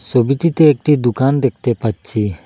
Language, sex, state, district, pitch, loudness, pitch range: Bengali, male, Assam, Hailakandi, 125 Hz, -15 LUFS, 110-145 Hz